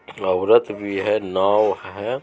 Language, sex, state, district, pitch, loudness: Maithili, male, Bihar, Supaul, 105 Hz, -20 LUFS